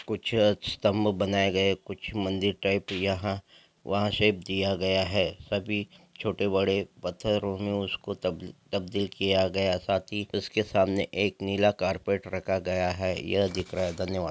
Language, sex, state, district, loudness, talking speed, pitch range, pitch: Hindi, male, Bihar, Gopalganj, -28 LUFS, 170 wpm, 95-100 Hz, 95 Hz